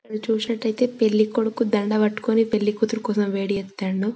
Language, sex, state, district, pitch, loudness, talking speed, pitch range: Telugu, female, Telangana, Karimnagar, 220 Hz, -22 LUFS, 160 wpm, 210-225 Hz